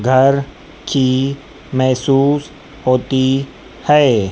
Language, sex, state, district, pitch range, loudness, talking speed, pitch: Hindi, female, Madhya Pradesh, Dhar, 130-140 Hz, -15 LUFS, 70 wpm, 135 Hz